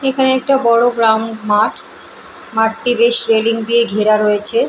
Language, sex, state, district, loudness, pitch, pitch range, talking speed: Bengali, female, West Bengal, Purulia, -13 LUFS, 225 Hz, 220-245 Hz, 140 wpm